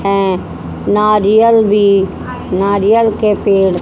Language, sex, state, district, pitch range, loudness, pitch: Hindi, female, Haryana, Charkhi Dadri, 195-215 Hz, -12 LUFS, 205 Hz